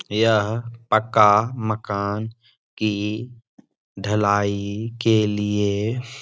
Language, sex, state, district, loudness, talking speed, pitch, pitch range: Hindi, male, Bihar, Jahanabad, -21 LUFS, 75 wpm, 110 Hz, 105-115 Hz